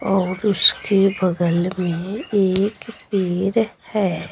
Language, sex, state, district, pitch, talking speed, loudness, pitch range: Hindi, female, Bihar, Patna, 195 Hz, 95 wpm, -19 LUFS, 180-205 Hz